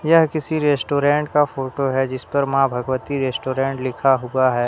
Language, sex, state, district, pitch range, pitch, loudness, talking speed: Hindi, male, Jharkhand, Deoghar, 130-145 Hz, 135 Hz, -20 LUFS, 165 wpm